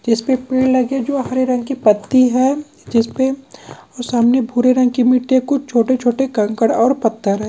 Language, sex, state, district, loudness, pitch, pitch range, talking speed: Hindi, male, Chhattisgarh, Korba, -16 LUFS, 255 Hz, 235-260 Hz, 170 wpm